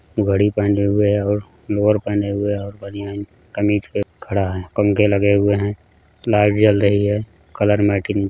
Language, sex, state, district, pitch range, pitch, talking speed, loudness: Hindi, male, Uttar Pradesh, Hamirpur, 100-105 Hz, 100 Hz, 190 wpm, -18 LUFS